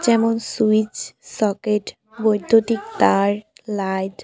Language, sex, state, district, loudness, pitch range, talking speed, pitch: Bengali, female, West Bengal, Alipurduar, -20 LUFS, 200-225 Hz, 100 wpm, 215 Hz